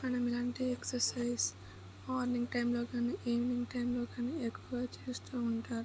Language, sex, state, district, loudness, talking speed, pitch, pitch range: Telugu, male, Andhra Pradesh, Guntur, -36 LUFS, 135 wpm, 245 Hz, 240-250 Hz